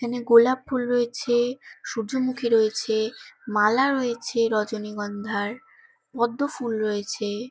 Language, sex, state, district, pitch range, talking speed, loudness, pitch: Bengali, female, West Bengal, Kolkata, 215-250 Hz, 95 wpm, -24 LUFS, 235 Hz